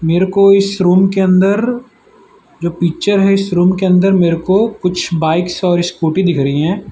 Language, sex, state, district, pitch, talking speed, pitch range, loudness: Hindi, male, Gujarat, Valsad, 185 Hz, 190 wpm, 170-195 Hz, -13 LUFS